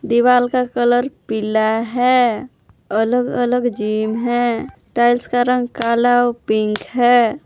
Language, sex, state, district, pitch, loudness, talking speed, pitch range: Hindi, female, Jharkhand, Palamu, 240 Hz, -17 LUFS, 120 wpm, 225-245 Hz